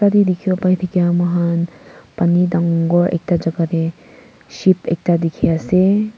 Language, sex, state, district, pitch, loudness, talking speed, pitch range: Nagamese, female, Nagaland, Kohima, 175 Hz, -17 LUFS, 95 wpm, 170-185 Hz